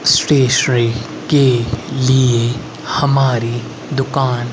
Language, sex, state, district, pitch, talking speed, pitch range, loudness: Hindi, male, Haryana, Rohtak, 130 Hz, 65 wpm, 120-140 Hz, -15 LUFS